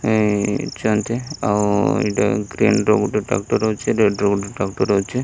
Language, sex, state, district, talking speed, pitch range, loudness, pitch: Odia, male, Odisha, Malkangiri, 160 wpm, 100-110 Hz, -19 LUFS, 105 Hz